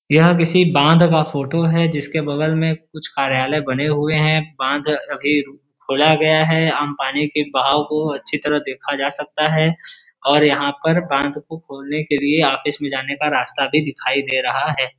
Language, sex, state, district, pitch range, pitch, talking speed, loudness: Hindi, male, Uttar Pradesh, Varanasi, 140-155 Hz, 150 Hz, 200 wpm, -17 LUFS